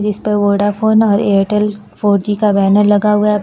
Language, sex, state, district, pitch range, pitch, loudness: Hindi, female, Uttar Pradesh, Lucknow, 205-210 Hz, 210 Hz, -13 LUFS